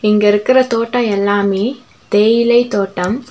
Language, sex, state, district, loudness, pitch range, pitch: Tamil, female, Tamil Nadu, Nilgiris, -14 LUFS, 205-240 Hz, 215 Hz